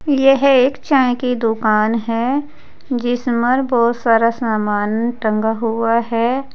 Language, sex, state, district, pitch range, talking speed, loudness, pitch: Hindi, female, Uttar Pradesh, Saharanpur, 225-255 Hz, 120 wpm, -16 LUFS, 235 Hz